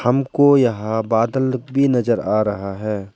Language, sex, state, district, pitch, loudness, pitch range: Hindi, male, Arunachal Pradesh, Lower Dibang Valley, 115 Hz, -18 LUFS, 105-130 Hz